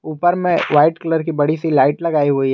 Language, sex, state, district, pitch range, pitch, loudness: Hindi, male, Jharkhand, Garhwa, 145-165 Hz, 155 Hz, -16 LUFS